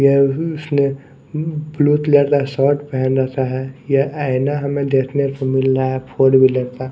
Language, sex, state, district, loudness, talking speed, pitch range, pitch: Hindi, male, Odisha, Nuapada, -17 LUFS, 175 wpm, 130-145 Hz, 140 Hz